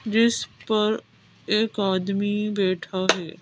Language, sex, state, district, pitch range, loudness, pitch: Hindi, female, Madhya Pradesh, Bhopal, 190-215 Hz, -24 LUFS, 205 Hz